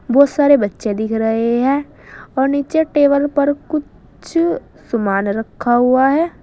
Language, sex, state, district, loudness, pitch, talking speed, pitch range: Hindi, female, Uttar Pradesh, Saharanpur, -16 LUFS, 275 Hz, 140 wpm, 230-290 Hz